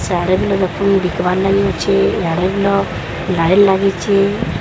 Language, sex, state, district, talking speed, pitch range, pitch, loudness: Odia, female, Odisha, Sambalpur, 80 wpm, 175-195 Hz, 190 Hz, -15 LUFS